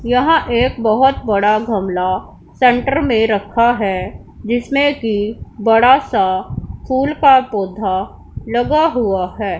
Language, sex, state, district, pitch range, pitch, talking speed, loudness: Hindi, female, Punjab, Pathankot, 205-260 Hz, 230 Hz, 120 wpm, -15 LUFS